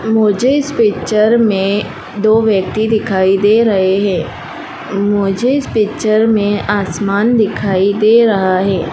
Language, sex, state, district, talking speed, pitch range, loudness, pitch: Hindi, female, Madhya Pradesh, Dhar, 130 wpm, 195-225 Hz, -13 LUFS, 210 Hz